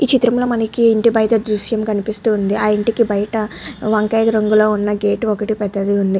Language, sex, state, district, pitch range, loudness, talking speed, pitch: Telugu, female, Andhra Pradesh, Guntur, 210-225 Hz, -16 LUFS, 175 wpm, 215 Hz